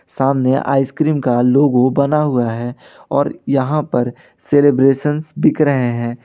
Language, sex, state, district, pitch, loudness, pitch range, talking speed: Hindi, male, Jharkhand, Ranchi, 135 Hz, -15 LUFS, 125-145 Hz, 135 wpm